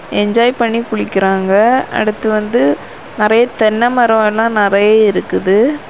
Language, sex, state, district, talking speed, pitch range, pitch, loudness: Tamil, female, Tamil Nadu, Kanyakumari, 110 wpm, 210-235 Hz, 220 Hz, -13 LUFS